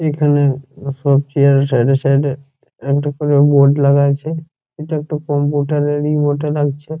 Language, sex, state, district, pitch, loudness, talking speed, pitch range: Bengali, male, West Bengal, Jhargram, 145 Hz, -15 LUFS, 180 wpm, 140-150 Hz